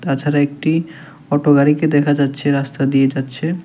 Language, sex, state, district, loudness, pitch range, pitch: Bengali, male, Tripura, West Tripura, -16 LUFS, 140-155 Hz, 145 Hz